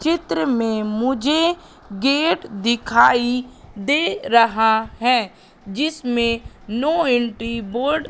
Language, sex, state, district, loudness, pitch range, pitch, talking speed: Hindi, female, Madhya Pradesh, Katni, -19 LUFS, 225-290 Hz, 240 Hz, 95 wpm